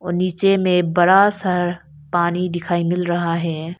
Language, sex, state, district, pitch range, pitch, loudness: Hindi, female, Arunachal Pradesh, Lower Dibang Valley, 170-180 Hz, 175 Hz, -18 LUFS